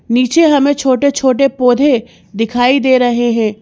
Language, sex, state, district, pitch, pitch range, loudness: Hindi, female, Madhya Pradesh, Bhopal, 255 Hz, 240-275 Hz, -12 LUFS